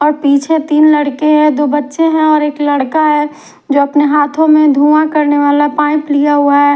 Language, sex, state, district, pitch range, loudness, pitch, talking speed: Hindi, female, Punjab, Fazilka, 290-305 Hz, -11 LUFS, 295 Hz, 205 wpm